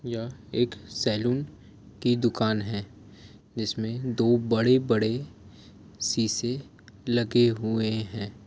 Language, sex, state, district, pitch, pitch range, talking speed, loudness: Hindi, male, Jharkhand, Jamtara, 115 Hz, 105-120 Hz, 100 wpm, -27 LUFS